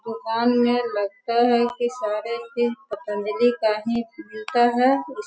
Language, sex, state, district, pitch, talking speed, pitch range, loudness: Hindi, female, Bihar, Sitamarhi, 240 Hz, 160 wpm, 225-245 Hz, -22 LUFS